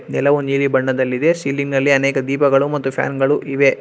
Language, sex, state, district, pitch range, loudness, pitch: Kannada, male, Karnataka, Bangalore, 135-140 Hz, -17 LUFS, 140 Hz